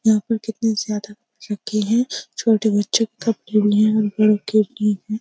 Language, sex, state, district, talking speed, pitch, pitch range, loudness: Hindi, female, Uttar Pradesh, Jyotiba Phule Nagar, 125 wpm, 215 Hz, 210-225 Hz, -20 LUFS